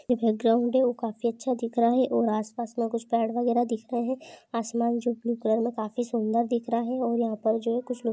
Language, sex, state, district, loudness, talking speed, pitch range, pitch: Hindi, female, Andhra Pradesh, Anantapur, -27 LUFS, 245 wpm, 230-245 Hz, 235 Hz